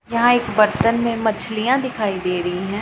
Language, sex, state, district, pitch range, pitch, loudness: Hindi, female, Punjab, Pathankot, 205-235 Hz, 220 Hz, -19 LUFS